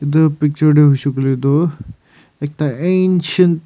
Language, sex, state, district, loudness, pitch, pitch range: Nagamese, male, Nagaland, Kohima, -15 LUFS, 150 Hz, 140-165 Hz